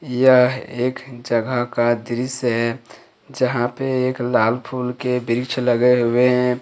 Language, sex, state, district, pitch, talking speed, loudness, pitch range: Hindi, male, Jharkhand, Ranchi, 125 Hz, 145 wpm, -19 LUFS, 120-130 Hz